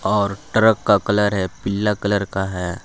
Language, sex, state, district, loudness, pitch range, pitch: Hindi, male, Jharkhand, Palamu, -19 LUFS, 95-105 Hz, 100 Hz